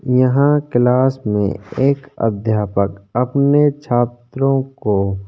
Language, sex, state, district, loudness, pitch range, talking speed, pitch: Hindi, male, Chhattisgarh, Korba, -17 LUFS, 105-135 Hz, 100 wpm, 125 Hz